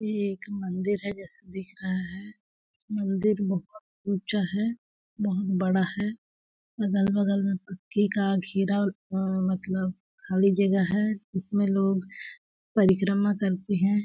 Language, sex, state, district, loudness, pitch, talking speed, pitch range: Hindi, female, Chhattisgarh, Balrampur, -27 LUFS, 195 Hz, 140 wpm, 190-205 Hz